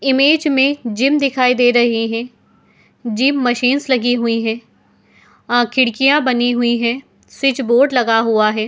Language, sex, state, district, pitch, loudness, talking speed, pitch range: Hindi, female, Uttar Pradesh, Etah, 245 Hz, -15 LUFS, 150 wpm, 235-270 Hz